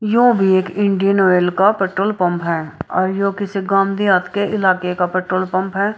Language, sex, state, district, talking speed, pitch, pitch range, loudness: Hindi, female, Bihar, Saharsa, 190 wpm, 195 Hz, 185-200 Hz, -17 LUFS